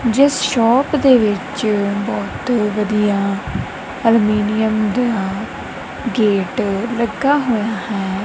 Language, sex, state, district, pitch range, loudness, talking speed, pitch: Punjabi, female, Punjab, Kapurthala, 205-240 Hz, -17 LUFS, 85 wpm, 220 Hz